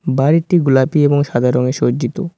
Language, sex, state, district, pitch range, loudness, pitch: Bengali, male, West Bengal, Cooch Behar, 130-165 Hz, -14 LUFS, 145 Hz